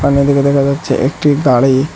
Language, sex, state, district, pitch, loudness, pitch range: Bengali, male, Assam, Hailakandi, 140 Hz, -12 LUFS, 135-140 Hz